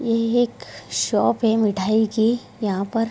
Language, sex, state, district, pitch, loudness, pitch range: Hindi, female, Bihar, Bhagalpur, 225 Hz, -21 LUFS, 215-230 Hz